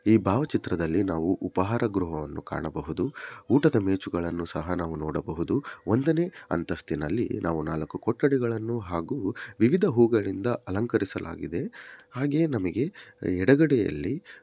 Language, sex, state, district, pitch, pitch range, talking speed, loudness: Kannada, male, Karnataka, Bellary, 95 Hz, 85-120 Hz, 105 wpm, -27 LUFS